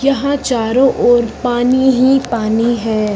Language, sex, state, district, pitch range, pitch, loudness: Hindi, female, Uttar Pradesh, Lucknow, 230-265 Hz, 245 Hz, -13 LUFS